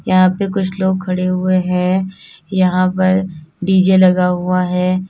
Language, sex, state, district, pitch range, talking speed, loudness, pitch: Hindi, female, Uttar Pradesh, Lalitpur, 180-190 Hz, 155 wpm, -15 LUFS, 185 Hz